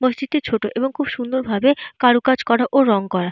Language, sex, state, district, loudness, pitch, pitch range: Bengali, female, Jharkhand, Jamtara, -18 LUFS, 255 Hz, 230-275 Hz